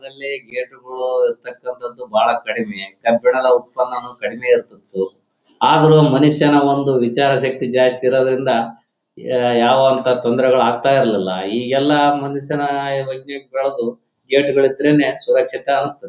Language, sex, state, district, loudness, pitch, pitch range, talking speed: Kannada, male, Karnataka, Bellary, -16 LUFS, 135 Hz, 125-145 Hz, 125 wpm